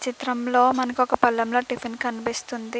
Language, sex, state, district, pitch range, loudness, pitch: Telugu, female, Andhra Pradesh, Krishna, 240-250 Hz, -23 LUFS, 245 Hz